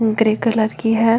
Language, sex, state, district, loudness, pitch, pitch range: Marwari, female, Rajasthan, Nagaur, -17 LUFS, 225 Hz, 220-230 Hz